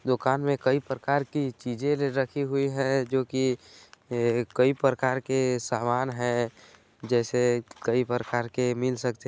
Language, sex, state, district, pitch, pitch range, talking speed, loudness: Hindi, male, Chhattisgarh, Bilaspur, 130 Hz, 120-135 Hz, 135 wpm, -27 LUFS